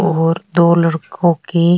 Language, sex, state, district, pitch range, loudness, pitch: Rajasthani, female, Rajasthan, Nagaur, 165-175 Hz, -15 LUFS, 170 Hz